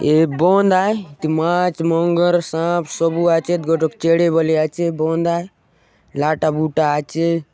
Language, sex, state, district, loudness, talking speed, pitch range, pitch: Halbi, male, Chhattisgarh, Bastar, -17 LUFS, 145 wpm, 155-170 Hz, 165 Hz